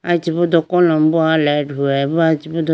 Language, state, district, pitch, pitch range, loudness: Idu Mishmi, Arunachal Pradesh, Lower Dibang Valley, 160 Hz, 150-170 Hz, -16 LUFS